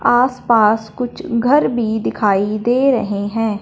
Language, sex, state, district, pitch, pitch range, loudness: Hindi, male, Punjab, Fazilka, 230 Hz, 210-245 Hz, -16 LUFS